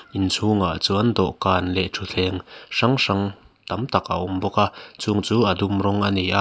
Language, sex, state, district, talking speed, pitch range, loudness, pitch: Mizo, male, Mizoram, Aizawl, 195 wpm, 95-105 Hz, -22 LUFS, 100 Hz